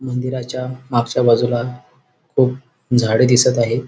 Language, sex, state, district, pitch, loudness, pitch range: Marathi, male, Maharashtra, Sindhudurg, 125 Hz, -17 LUFS, 120-125 Hz